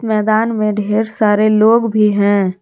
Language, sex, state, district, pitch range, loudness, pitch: Hindi, female, Jharkhand, Garhwa, 210-220 Hz, -13 LUFS, 215 Hz